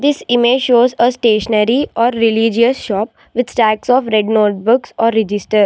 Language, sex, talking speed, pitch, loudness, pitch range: English, female, 160 wpm, 230 Hz, -14 LUFS, 215-245 Hz